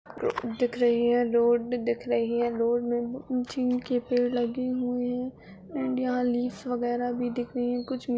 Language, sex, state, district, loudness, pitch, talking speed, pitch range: Hindi, female, Uttar Pradesh, Budaun, -28 LUFS, 245 Hz, 175 wpm, 240-250 Hz